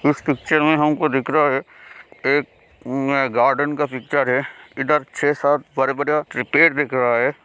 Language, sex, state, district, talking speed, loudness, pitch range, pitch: Hindi, male, Bihar, Kishanganj, 155 wpm, -19 LUFS, 135-150 Hz, 145 Hz